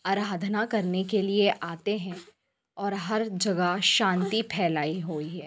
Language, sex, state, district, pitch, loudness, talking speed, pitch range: Hindi, female, Chhattisgarh, Bilaspur, 195 Hz, -27 LUFS, 140 wpm, 180-205 Hz